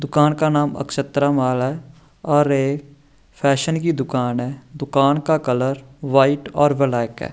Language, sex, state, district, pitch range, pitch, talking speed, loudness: Hindi, male, Maharashtra, Chandrapur, 135-145 Hz, 140 Hz, 155 wpm, -19 LUFS